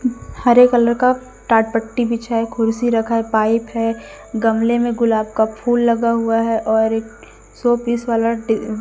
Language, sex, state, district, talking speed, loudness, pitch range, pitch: Hindi, female, Madhya Pradesh, Umaria, 175 wpm, -17 LUFS, 225-240 Hz, 230 Hz